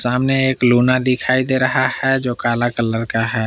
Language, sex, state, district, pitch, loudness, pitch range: Hindi, male, Jharkhand, Palamu, 125 Hz, -17 LUFS, 120-130 Hz